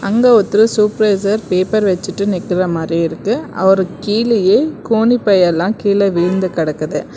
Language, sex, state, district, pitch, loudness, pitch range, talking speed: Tamil, female, Karnataka, Bangalore, 200 Hz, -14 LUFS, 180-220 Hz, 125 wpm